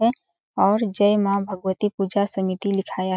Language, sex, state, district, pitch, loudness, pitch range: Hindi, female, Chhattisgarh, Balrampur, 200 Hz, -22 LUFS, 190-205 Hz